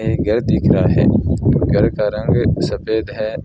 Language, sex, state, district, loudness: Hindi, male, Rajasthan, Bikaner, -16 LUFS